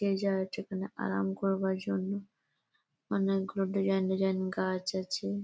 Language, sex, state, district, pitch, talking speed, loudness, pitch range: Bengali, female, West Bengal, Malda, 195 Hz, 120 wpm, -32 LUFS, 190-195 Hz